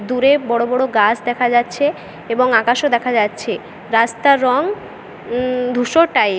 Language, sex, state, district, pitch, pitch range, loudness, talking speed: Bengali, female, West Bengal, Jhargram, 245 Hz, 235-260 Hz, -16 LUFS, 140 wpm